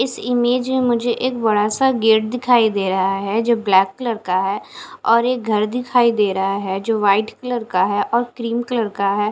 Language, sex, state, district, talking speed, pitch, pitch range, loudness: Hindi, female, Punjab, Fazilka, 220 wpm, 225 Hz, 200-245 Hz, -18 LUFS